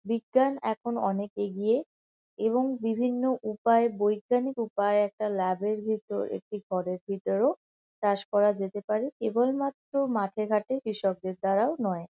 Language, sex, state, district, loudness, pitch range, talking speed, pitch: Bengali, female, West Bengal, Kolkata, -28 LUFS, 200-235 Hz, 125 wpm, 215 Hz